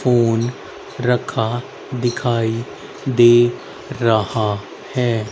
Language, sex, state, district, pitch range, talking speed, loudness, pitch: Hindi, male, Haryana, Rohtak, 115-125 Hz, 70 wpm, -18 LUFS, 120 Hz